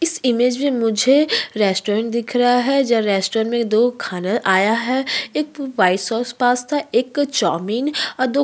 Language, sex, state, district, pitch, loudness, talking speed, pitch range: Hindi, female, Uttarakhand, Tehri Garhwal, 245 Hz, -18 LUFS, 140 wpm, 220-275 Hz